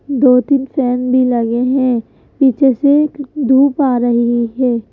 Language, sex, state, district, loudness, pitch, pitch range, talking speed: Hindi, female, Madhya Pradesh, Bhopal, -13 LUFS, 260 Hz, 245-275 Hz, 135 wpm